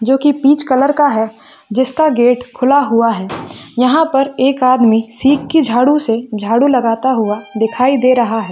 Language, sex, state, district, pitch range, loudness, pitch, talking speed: Hindi, female, Chhattisgarh, Bilaspur, 225-275 Hz, -13 LUFS, 255 Hz, 185 wpm